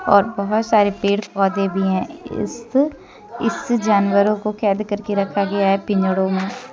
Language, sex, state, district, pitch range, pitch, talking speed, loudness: Hindi, female, Jharkhand, Deoghar, 195-215 Hz, 200 Hz, 160 wpm, -19 LUFS